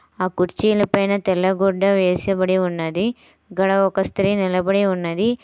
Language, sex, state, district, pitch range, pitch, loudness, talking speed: Telugu, female, Telangana, Hyderabad, 185-200 Hz, 195 Hz, -19 LUFS, 130 wpm